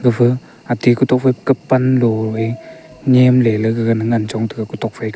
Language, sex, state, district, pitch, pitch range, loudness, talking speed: Wancho, male, Arunachal Pradesh, Longding, 120 Hz, 115-130 Hz, -16 LUFS, 140 wpm